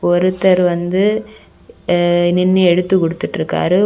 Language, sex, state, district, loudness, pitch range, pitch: Tamil, female, Tamil Nadu, Kanyakumari, -15 LUFS, 175-190 Hz, 180 Hz